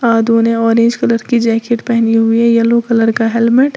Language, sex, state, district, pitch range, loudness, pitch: Hindi, female, Uttar Pradesh, Lalitpur, 230-235 Hz, -12 LUFS, 230 Hz